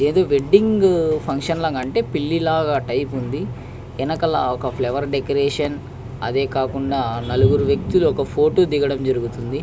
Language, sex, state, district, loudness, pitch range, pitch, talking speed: Telugu, male, Andhra Pradesh, Krishna, -20 LUFS, 125-155 Hz, 140 Hz, 110 wpm